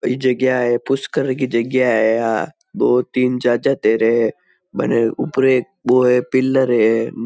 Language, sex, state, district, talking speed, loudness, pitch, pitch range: Marwari, male, Rajasthan, Nagaur, 155 wpm, -17 LUFS, 125 Hz, 115-130 Hz